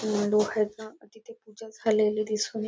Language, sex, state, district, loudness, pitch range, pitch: Marathi, female, Maharashtra, Nagpur, -27 LUFS, 215-220 Hz, 215 Hz